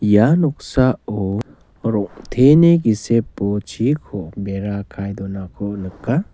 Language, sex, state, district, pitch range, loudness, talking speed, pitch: Garo, male, Meghalaya, South Garo Hills, 100-130 Hz, -18 LUFS, 85 wpm, 105 Hz